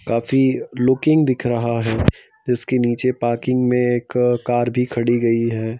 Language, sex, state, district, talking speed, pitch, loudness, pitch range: Hindi, male, Madhya Pradesh, Bhopal, 155 wpm, 120 Hz, -19 LUFS, 120-125 Hz